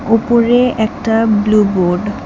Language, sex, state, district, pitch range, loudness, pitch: Bengali, female, West Bengal, Alipurduar, 210-230 Hz, -13 LUFS, 220 Hz